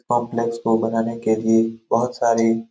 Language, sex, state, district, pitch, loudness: Hindi, male, Bihar, Saran, 115 Hz, -20 LUFS